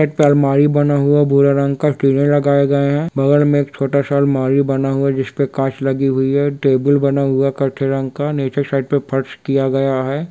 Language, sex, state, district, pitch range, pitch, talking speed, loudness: Hindi, male, Bihar, Sitamarhi, 135-145 Hz, 140 Hz, 220 wpm, -16 LUFS